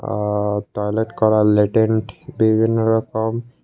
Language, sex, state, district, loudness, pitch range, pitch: Bengali, male, Tripura, West Tripura, -18 LUFS, 105-115 Hz, 110 Hz